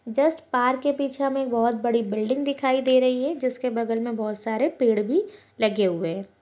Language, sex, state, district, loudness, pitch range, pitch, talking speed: Hindi, female, Uttar Pradesh, Jalaun, -24 LUFS, 225-275 Hz, 255 Hz, 205 wpm